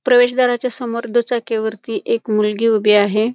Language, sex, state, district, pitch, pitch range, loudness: Marathi, female, Maharashtra, Pune, 230 Hz, 215-245 Hz, -17 LUFS